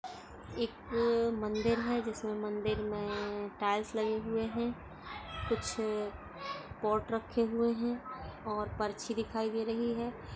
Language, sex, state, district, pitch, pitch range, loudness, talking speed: Hindi, female, Goa, North and South Goa, 225 Hz, 215-235 Hz, -35 LUFS, 120 wpm